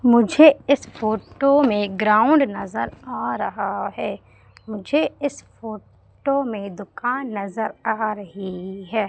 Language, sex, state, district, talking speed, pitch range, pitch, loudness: Hindi, female, Madhya Pradesh, Umaria, 120 wpm, 205-275 Hz, 220 Hz, -21 LUFS